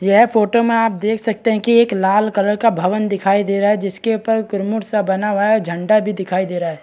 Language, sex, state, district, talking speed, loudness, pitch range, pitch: Hindi, female, Bihar, East Champaran, 255 wpm, -16 LUFS, 195-220 Hz, 210 Hz